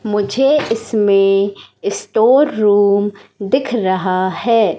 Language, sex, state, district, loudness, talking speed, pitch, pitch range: Hindi, female, Madhya Pradesh, Katni, -15 LUFS, 90 wpm, 205 Hz, 200-230 Hz